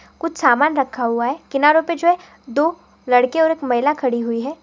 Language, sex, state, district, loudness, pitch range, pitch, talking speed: Hindi, female, Maharashtra, Pune, -18 LUFS, 245-325 Hz, 280 Hz, 220 wpm